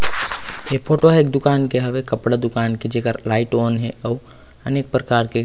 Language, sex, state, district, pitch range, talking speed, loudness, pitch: Chhattisgarhi, male, Chhattisgarh, Raigarh, 115-135 Hz, 165 wpm, -19 LUFS, 120 Hz